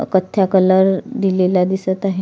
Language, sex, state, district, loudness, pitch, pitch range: Marathi, female, Maharashtra, Solapur, -16 LUFS, 190 Hz, 185-190 Hz